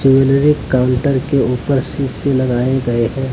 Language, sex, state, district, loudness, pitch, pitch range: Hindi, male, Jharkhand, Deoghar, -15 LUFS, 130 Hz, 125-135 Hz